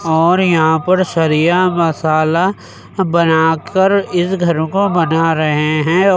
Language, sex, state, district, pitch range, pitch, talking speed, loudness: Hindi, male, Uttar Pradesh, Jyotiba Phule Nagar, 160-185 Hz, 170 Hz, 145 wpm, -14 LUFS